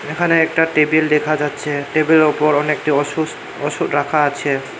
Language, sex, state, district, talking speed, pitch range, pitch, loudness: Bengali, male, Tripura, Unakoti, 165 wpm, 145-155 Hz, 150 Hz, -16 LUFS